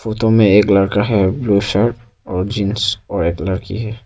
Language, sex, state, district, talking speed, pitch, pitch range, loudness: Hindi, male, Arunachal Pradesh, Papum Pare, 190 wpm, 100 Hz, 100-110 Hz, -16 LUFS